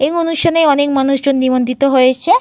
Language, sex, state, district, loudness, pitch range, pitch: Bengali, female, Jharkhand, Jamtara, -13 LUFS, 260-315 Hz, 275 Hz